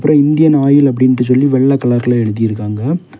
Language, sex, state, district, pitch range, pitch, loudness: Tamil, male, Tamil Nadu, Kanyakumari, 120-145 Hz, 130 Hz, -12 LUFS